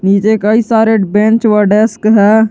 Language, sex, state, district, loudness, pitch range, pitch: Hindi, male, Jharkhand, Garhwa, -10 LUFS, 210-220 Hz, 215 Hz